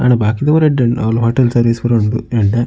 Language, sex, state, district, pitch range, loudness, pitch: Tulu, male, Karnataka, Dakshina Kannada, 115-125 Hz, -14 LUFS, 120 Hz